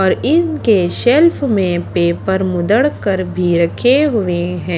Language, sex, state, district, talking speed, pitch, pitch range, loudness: Hindi, female, Haryana, Charkhi Dadri, 140 wpm, 190 Hz, 175-255 Hz, -14 LUFS